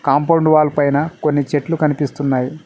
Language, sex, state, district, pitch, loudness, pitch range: Telugu, male, Telangana, Mahabubabad, 145 Hz, -16 LUFS, 140-155 Hz